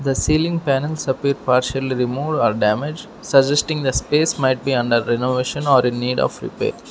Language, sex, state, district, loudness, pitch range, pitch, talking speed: English, male, Arunachal Pradesh, Lower Dibang Valley, -19 LUFS, 125-150 Hz, 135 Hz, 175 wpm